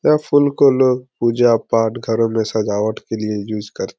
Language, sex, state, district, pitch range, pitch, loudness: Hindi, male, Bihar, Supaul, 110-130 Hz, 115 Hz, -17 LUFS